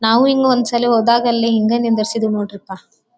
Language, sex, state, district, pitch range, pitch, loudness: Kannada, female, Karnataka, Dharwad, 220-240 Hz, 230 Hz, -15 LUFS